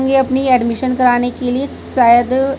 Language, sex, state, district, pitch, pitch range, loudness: Hindi, female, Chhattisgarh, Raipur, 255 Hz, 245-265 Hz, -14 LUFS